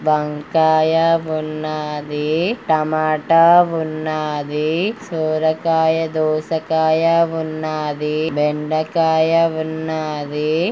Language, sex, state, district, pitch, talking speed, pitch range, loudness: Telugu, female, Andhra Pradesh, Guntur, 155 Hz, 50 wpm, 155-160 Hz, -18 LUFS